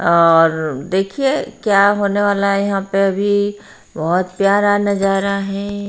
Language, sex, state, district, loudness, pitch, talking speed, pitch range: Hindi, female, Haryana, Rohtak, -16 LUFS, 200 Hz, 130 wpm, 190-205 Hz